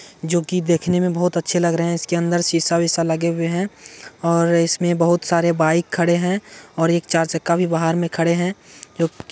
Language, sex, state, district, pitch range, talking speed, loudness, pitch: Hindi, male, Bihar, Madhepura, 165-175 Hz, 210 wpm, -19 LUFS, 170 Hz